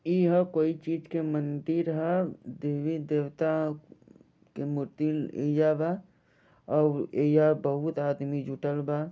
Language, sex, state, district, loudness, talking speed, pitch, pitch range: Bhojpuri, male, Jharkhand, Sahebganj, -29 LUFS, 120 wpm, 155 Hz, 145-160 Hz